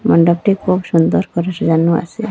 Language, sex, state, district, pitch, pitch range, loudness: Bengali, female, Assam, Hailakandi, 175 Hz, 170-195 Hz, -15 LUFS